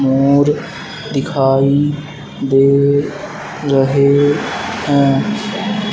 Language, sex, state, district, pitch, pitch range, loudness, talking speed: Hindi, male, Madhya Pradesh, Dhar, 145 Hz, 140-165 Hz, -14 LUFS, 50 wpm